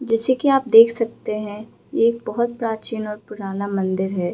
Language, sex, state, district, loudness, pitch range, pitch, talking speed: Hindi, female, Bihar, Gaya, -20 LUFS, 205-230 Hz, 220 Hz, 195 wpm